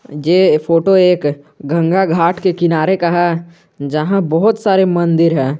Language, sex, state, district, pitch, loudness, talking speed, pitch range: Hindi, male, Jharkhand, Garhwa, 170 Hz, -13 LUFS, 150 wpm, 160-185 Hz